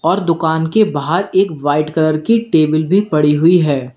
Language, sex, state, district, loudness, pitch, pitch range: Hindi, male, Uttar Pradesh, Lalitpur, -14 LUFS, 160 Hz, 155-190 Hz